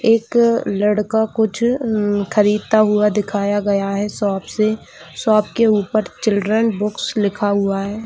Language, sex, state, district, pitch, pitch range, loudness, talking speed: Hindi, female, Chhattisgarh, Raigarh, 210 Hz, 205-220 Hz, -17 LUFS, 155 wpm